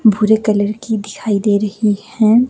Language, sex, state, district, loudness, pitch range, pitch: Hindi, female, Himachal Pradesh, Shimla, -15 LUFS, 205-220 Hz, 215 Hz